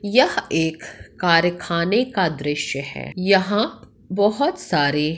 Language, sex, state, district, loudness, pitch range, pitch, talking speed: Hindi, female, Bihar, Madhepura, -20 LUFS, 160-205 Hz, 180 Hz, 105 wpm